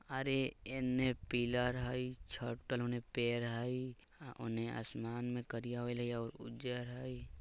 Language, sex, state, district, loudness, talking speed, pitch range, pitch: Bajjika, male, Bihar, Vaishali, -40 LUFS, 120 wpm, 120-125 Hz, 120 Hz